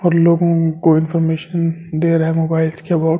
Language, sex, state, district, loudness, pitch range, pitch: Hindi, male, Delhi, New Delhi, -16 LUFS, 160-170 Hz, 165 Hz